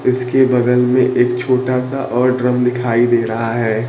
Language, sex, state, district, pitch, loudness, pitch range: Hindi, male, Bihar, Kaimur, 125 Hz, -15 LUFS, 120-125 Hz